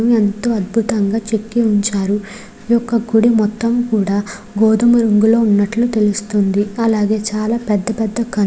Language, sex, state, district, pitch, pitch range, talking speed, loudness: Telugu, female, Andhra Pradesh, Srikakulam, 215 Hz, 205-230 Hz, 130 wpm, -16 LUFS